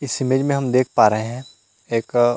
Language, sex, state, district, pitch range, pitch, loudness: Hindi, male, Chhattisgarh, Rajnandgaon, 115-130 Hz, 120 Hz, -19 LUFS